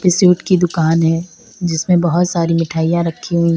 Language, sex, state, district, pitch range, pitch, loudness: Hindi, female, Uttar Pradesh, Lalitpur, 165-180 Hz, 170 Hz, -15 LUFS